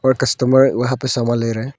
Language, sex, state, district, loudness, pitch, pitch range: Hindi, female, Arunachal Pradesh, Longding, -16 LUFS, 130 Hz, 120-130 Hz